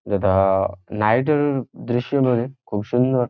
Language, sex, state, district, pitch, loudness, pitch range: Bengali, male, West Bengal, Jhargram, 120 Hz, -20 LUFS, 100-130 Hz